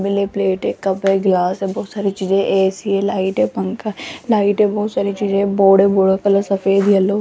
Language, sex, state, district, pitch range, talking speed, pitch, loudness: Hindi, female, Rajasthan, Jaipur, 195-200 Hz, 260 wpm, 195 Hz, -17 LUFS